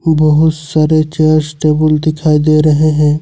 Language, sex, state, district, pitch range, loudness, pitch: Hindi, male, Jharkhand, Ranchi, 150-155 Hz, -11 LUFS, 155 Hz